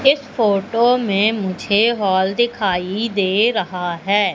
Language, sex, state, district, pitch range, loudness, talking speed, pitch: Hindi, female, Madhya Pradesh, Katni, 190-230 Hz, -18 LUFS, 125 wpm, 205 Hz